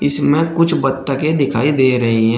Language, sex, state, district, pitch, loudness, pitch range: Hindi, male, Uttar Pradesh, Shamli, 140 Hz, -15 LUFS, 125-155 Hz